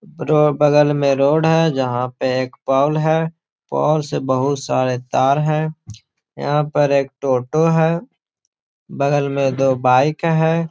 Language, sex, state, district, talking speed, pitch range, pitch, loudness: Hindi, male, Bihar, Gaya, 145 wpm, 135-155 Hz, 145 Hz, -17 LUFS